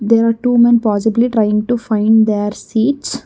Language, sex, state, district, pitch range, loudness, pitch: English, female, Karnataka, Bangalore, 215-240 Hz, -14 LUFS, 225 Hz